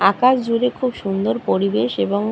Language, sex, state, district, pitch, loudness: Bengali, female, West Bengal, Purulia, 200 Hz, -19 LUFS